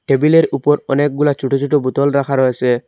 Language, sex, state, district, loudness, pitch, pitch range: Bengali, male, Assam, Hailakandi, -15 LUFS, 140 Hz, 135-145 Hz